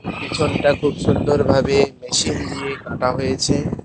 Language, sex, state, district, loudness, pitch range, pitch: Bengali, male, West Bengal, Cooch Behar, -19 LUFS, 135-145 Hz, 140 Hz